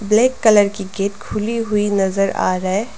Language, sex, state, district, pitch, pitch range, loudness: Hindi, female, Arunachal Pradesh, Lower Dibang Valley, 205 Hz, 195-220 Hz, -17 LUFS